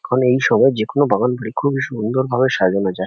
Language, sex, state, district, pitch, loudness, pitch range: Bengali, male, West Bengal, Kolkata, 125 Hz, -17 LUFS, 110-130 Hz